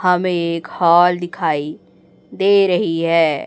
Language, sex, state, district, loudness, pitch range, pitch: Hindi, female, Chhattisgarh, Raipur, -16 LUFS, 165-180 Hz, 175 Hz